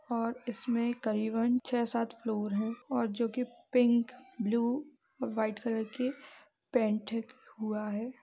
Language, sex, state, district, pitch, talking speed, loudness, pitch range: Hindi, female, Bihar, East Champaran, 235 Hz, 145 wpm, -33 LUFS, 220-250 Hz